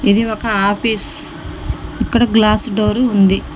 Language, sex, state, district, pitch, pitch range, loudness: Telugu, female, Telangana, Mahabubabad, 215 Hz, 205-225 Hz, -15 LUFS